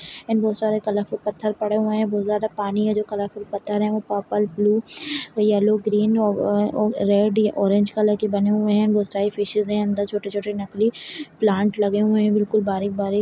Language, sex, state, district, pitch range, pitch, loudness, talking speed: Kumaoni, female, Uttarakhand, Uttarkashi, 205-215 Hz, 210 Hz, -21 LUFS, 195 wpm